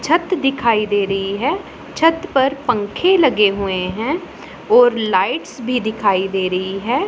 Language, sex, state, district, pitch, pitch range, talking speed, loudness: Hindi, female, Punjab, Pathankot, 225 Hz, 195-280 Hz, 150 wpm, -17 LUFS